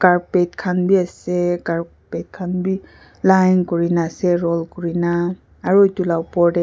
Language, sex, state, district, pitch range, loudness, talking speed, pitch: Nagamese, female, Nagaland, Kohima, 170-185 Hz, -19 LUFS, 170 wpm, 175 Hz